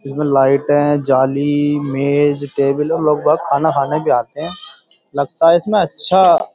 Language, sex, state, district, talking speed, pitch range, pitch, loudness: Hindi, male, Uttar Pradesh, Jyotiba Phule Nagar, 165 wpm, 140-155 Hz, 145 Hz, -15 LUFS